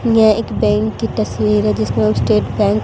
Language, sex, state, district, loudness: Hindi, female, Haryana, Jhajjar, -15 LUFS